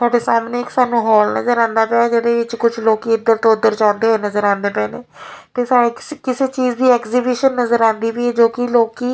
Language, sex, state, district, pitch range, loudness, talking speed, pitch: Punjabi, female, Punjab, Fazilka, 225-245 Hz, -16 LUFS, 215 wpm, 235 Hz